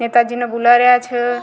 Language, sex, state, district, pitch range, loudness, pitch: Rajasthani, female, Rajasthan, Nagaur, 240-245 Hz, -14 LUFS, 240 Hz